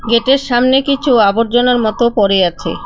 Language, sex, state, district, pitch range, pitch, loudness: Bengali, female, West Bengal, Cooch Behar, 215-260 Hz, 235 Hz, -12 LUFS